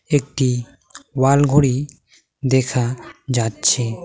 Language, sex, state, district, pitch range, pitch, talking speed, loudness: Bengali, male, West Bengal, Cooch Behar, 120-140 Hz, 130 Hz, 75 wpm, -18 LUFS